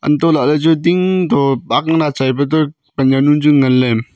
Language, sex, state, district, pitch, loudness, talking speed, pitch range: Wancho, male, Arunachal Pradesh, Longding, 150 Hz, -14 LUFS, 215 wpm, 135-160 Hz